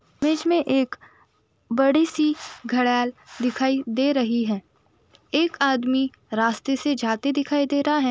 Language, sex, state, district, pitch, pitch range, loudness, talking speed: Hindi, female, Uttar Pradesh, Budaun, 270 Hz, 245-290 Hz, -23 LUFS, 140 wpm